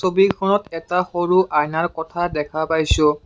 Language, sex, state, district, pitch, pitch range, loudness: Assamese, male, Assam, Kamrup Metropolitan, 175 Hz, 155-185 Hz, -20 LUFS